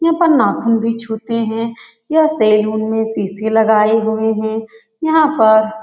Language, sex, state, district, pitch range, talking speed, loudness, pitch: Hindi, female, Bihar, Saran, 220-230 Hz, 165 wpm, -15 LUFS, 220 Hz